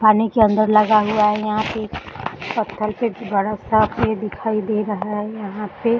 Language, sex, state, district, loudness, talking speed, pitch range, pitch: Hindi, female, Bihar, Samastipur, -20 LUFS, 190 wpm, 210-220 Hz, 215 Hz